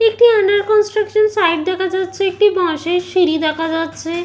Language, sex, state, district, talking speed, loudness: Bengali, female, West Bengal, Malda, 155 wpm, -15 LUFS